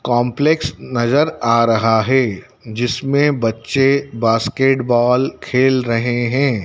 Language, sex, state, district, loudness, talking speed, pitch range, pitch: Hindi, male, Madhya Pradesh, Dhar, -16 LUFS, 100 wpm, 115-135 Hz, 125 Hz